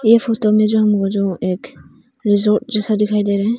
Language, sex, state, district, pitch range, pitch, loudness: Hindi, female, Arunachal Pradesh, Longding, 205-225 Hz, 210 Hz, -16 LUFS